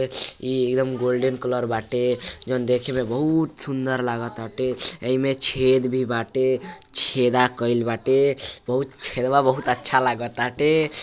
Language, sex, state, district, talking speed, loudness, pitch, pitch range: Bhojpuri, male, Uttar Pradesh, Gorakhpur, 125 wpm, -21 LUFS, 130 Hz, 120-130 Hz